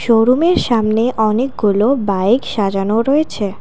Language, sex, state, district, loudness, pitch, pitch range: Bengali, female, Assam, Kamrup Metropolitan, -15 LUFS, 225 Hz, 205-250 Hz